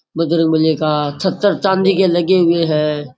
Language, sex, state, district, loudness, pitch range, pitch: Rajasthani, male, Rajasthan, Churu, -15 LUFS, 155-190 Hz, 165 Hz